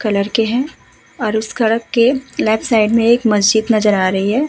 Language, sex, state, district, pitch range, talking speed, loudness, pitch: Hindi, female, Uttar Pradesh, Hamirpur, 215-235 Hz, 200 wpm, -15 LUFS, 225 Hz